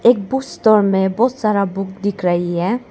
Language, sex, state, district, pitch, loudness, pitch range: Hindi, female, Arunachal Pradesh, Lower Dibang Valley, 205 Hz, -17 LUFS, 190-235 Hz